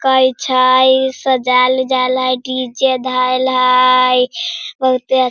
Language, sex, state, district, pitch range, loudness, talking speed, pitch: Hindi, female, Bihar, Sitamarhi, 255-260 Hz, -13 LUFS, 115 wpm, 255 Hz